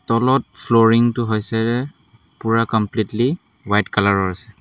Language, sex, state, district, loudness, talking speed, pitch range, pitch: Assamese, male, Assam, Hailakandi, -18 LUFS, 130 wpm, 105-120 Hz, 115 Hz